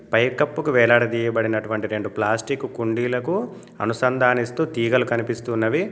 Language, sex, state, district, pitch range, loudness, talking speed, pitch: Telugu, male, Telangana, Komaram Bheem, 110-125 Hz, -21 LUFS, 80 wpm, 115 Hz